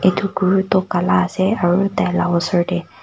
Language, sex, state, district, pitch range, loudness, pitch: Nagamese, female, Nagaland, Kohima, 175-190 Hz, -17 LUFS, 185 Hz